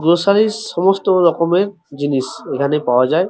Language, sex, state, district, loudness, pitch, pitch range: Bengali, male, West Bengal, Purulia, -16 LUFS, 175 Hz, 145-195 Hz